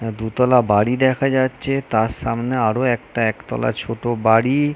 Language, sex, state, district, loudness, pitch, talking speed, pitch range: Bengali, male, West Bengal, North 24 Parganas, -19 LUFS, 120 Hz, 150 wpm, 110-130 Hz